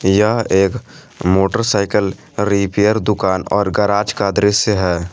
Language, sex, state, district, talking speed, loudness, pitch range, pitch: Hindi, male, Jharkhand, Garhwa, 115 wpm, -16 LUFS, 95-105 Hz, 100 Hz